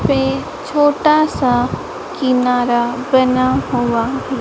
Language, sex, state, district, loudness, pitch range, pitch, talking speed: Hindi, female, Madhya Pradesh, Dhar, -16 LUFS, 240-265 Hz, 250 Hz, 80 wpm